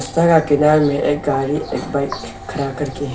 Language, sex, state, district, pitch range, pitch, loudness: Hindi, male, Arunachal Pradesh, Lower Dibang Valley, 140-150 Hz, 145 Hz, -18 LUFS